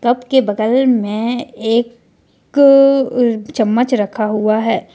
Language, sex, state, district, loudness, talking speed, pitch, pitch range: Hindi, female, Jharkhand, Ranchi, -14 LUFS, 95 wpm, 240 Hz, 220-255 Hz